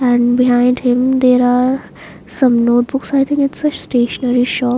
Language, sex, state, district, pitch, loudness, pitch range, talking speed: English, female, Maharashtra, Mumbai Suburban, 250 Hz, -14 LUFS, 245-260 Hz, 165 wpm